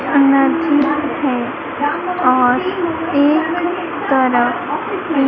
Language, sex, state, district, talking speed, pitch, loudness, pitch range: Hindi, female, Madhya Pradesh, Dhar, 55 wpm, 295 Hz, -16 LUFS, 275-345 Hz